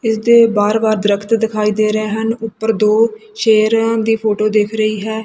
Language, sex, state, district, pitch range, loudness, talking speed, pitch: Punjabi, female, Punjab, Kapurthala, 215-225 Hz, -14 LUFS, 195 wpm, 220 Hz